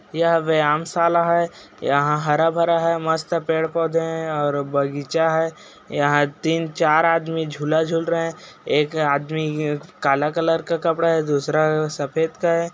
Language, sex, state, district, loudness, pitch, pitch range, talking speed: Hindi, male, Chhattisgarh, Raigarh, -20 LUFS, 160 Hz, 150-165 Hz, 150 wpm